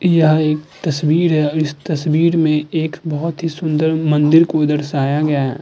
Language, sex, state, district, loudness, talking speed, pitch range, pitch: Hindi, female, Uttar Pradesh, Hamirpur, -16 LUFS, 180 wpm, 150-160 Hz, 155 Hz